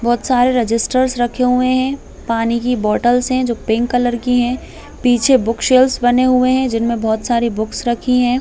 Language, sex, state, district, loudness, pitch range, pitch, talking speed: Hindi, female, Chhattisgarh, Bilaspur, -15 LUFS, 235-255 Hz, 245 Hz, 195 wpm